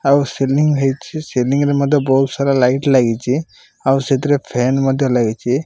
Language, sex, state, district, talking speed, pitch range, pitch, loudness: Odia, male, Odisha, Malkangiri, 160 wpm, 130-140 Hz, 135 Hz, -16 LUFS